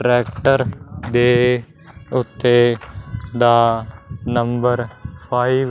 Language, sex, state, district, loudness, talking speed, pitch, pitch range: Punjabi, male, Punjab, Fazilka, -17 LUFS, 65 wpm, 120 Hz, 110-125 Hz